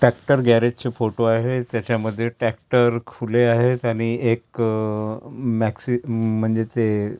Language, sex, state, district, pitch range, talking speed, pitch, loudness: Marathi, male, Maharashtra, Gondia, 110-120 Hz, 115 wpm, 115 Hz, -21 LUFS